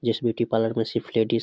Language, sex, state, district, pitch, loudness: Hindi, male, Bihar, Samastipur, 115 Hz, -25 LUFS